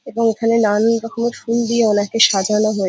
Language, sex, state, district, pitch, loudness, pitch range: Bengali, female, West Bengal, Jhargram, 225 Hz, -16 LUFS, 210-230 Hz